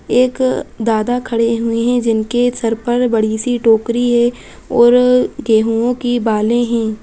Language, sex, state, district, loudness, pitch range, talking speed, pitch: Hindi, female, Bihar, Araria, -15 LUFS, 225-245 Hz, 155 wpm, 235 Hz